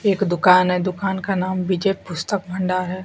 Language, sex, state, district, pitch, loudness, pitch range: Hindi, female, Bihar, Kaimur, 185 Hz, -20 LUFS, 180-195 Hz